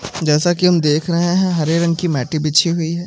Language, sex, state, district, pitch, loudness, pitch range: Hindi, male, Maharashtra, Mumbai Suburban, 170 Hz, -16 LUFS, 155-175 Hz